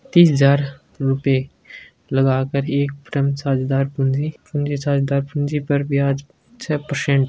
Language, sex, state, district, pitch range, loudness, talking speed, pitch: Hindi, male, Rajasthan, Churu, 135-145 Hz, -20 LUFS, 105 wpm, 140 Hz